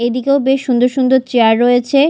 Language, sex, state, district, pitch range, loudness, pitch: Bengali, female, Odisha, Malkangiri, 245-270 Hz, -13 LUFS, 255 Hz